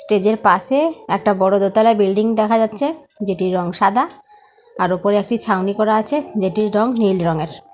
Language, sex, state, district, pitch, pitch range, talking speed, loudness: Bengali, female, West Bengal, North 24 Parganas, 215 Hz, 195-235 Hz, 170 wpm, -17 LUFS